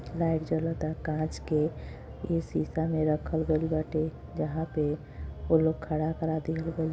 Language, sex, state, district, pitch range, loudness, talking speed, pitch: Bhojpuri, female, Uttar Pradesh, Gorakhpur, 155-160 Hz, -30 LUFS, 155 wpm, 160 Hz